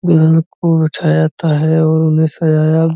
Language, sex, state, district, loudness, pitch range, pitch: Hindi, male, Uttar Pradesh, Muzaffarnagar, -13 LUFS, 155-160 Hz, 160 Hz